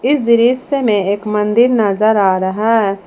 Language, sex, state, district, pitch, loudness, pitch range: Hindi, female, Jharkhand, Palamu, 215 Hz, -13 LUFS, 200-240 Hz